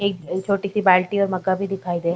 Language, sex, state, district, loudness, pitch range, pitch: Hindi, female, Bihar, Vaishali, -21 LUFS, 185-200 Hz, 190 Hz